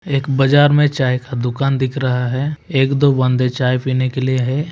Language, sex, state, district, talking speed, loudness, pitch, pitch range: Hindi, male, Bihar, Kishanganj, 205 wpm, -16 LUFS, 130 Hz, 130-140 Hz